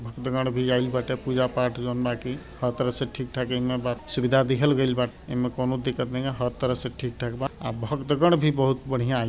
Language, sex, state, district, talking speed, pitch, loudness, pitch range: Bhojpuri, male, Bihar, Gopalganj, 205 wpm, 125 Hz, -26 LUFS, 125-130 Hz